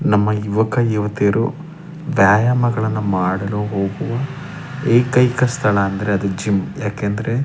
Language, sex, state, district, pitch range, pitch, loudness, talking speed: Kannada, male, Karnataka, Chamarajanagar, 100-125 Hz, 110 Hz, -18 LUFS, 115 wpm